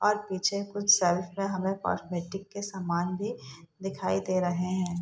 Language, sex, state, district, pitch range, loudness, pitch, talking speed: Hindi, female, Bihar, Saharsa, 175-200 Hz, -29 LUFS, 185 Hz, 180 wpm